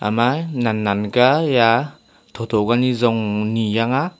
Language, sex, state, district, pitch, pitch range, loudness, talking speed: Wancho, male, Arunachal Pradesh, Longding, 115 Hz, 110-125 Hz, -18 LUFS, 200 wpm